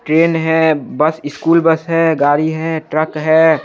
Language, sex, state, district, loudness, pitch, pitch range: Hindi, male, Chandigarh, Chandigarh, -14 LUFS, 160 Hz, 155-165 Hz